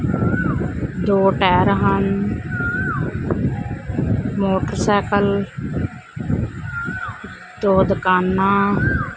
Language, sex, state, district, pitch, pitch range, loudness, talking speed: Punjabi, female, Punjab, Fazilka, 195 Hz, 170-200 Hz, -19 LUFS, 40 wpm